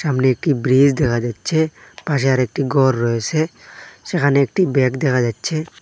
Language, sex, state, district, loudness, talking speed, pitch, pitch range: Bengali, male, Assam, Hailakandi, -18 LUFS, 145 wpm, 135 Hz, 130-155 Hz